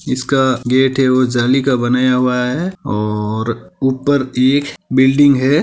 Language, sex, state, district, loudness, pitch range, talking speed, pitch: Hindi, male, Rajasthan, Nagaur, -15 LUFS, 125-135 Hz, 150 wpm, 130 Hz